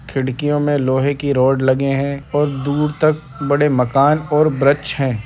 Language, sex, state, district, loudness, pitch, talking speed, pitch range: Hindi, male, Uttar Pradesh, Etah, -17 LUFS, 140 Hz, 170 wpm, 135-145 Hz